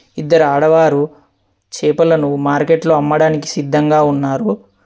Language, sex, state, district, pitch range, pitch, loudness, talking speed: Telugu, male, Telangana, Adilabad, 145-155 Hz, 150 Hz, -14 LUFS, 85 wpm